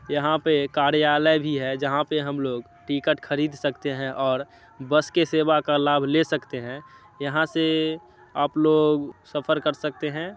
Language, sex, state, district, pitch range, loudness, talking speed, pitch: Hindi, male, Bihar, Muzaffarpur, 140-155 Hz, -23 LUFS, 170 wpm, 150 Hz